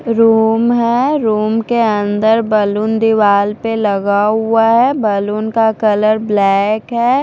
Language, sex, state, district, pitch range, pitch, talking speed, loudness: Hindi, female, Punjab, Fazilka, 210-230 Hz, 220 Hz, 135 wpm, -13 LUFS